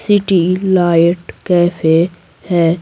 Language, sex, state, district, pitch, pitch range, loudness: Hindi, female, Bihar, Patna, 175 Hz, 170-185 Hz, -13 LUFS